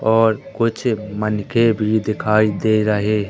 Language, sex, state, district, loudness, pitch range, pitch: Hindi, male, Madhya Pradesh, Katni, -18 LUFS, 105-115 Hz, 110 Hz